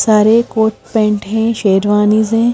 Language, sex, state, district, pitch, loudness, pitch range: Hindi, female, Himachal Pradesh, Shimla, 220 Hz, -13 LUFS, 210-225 Hz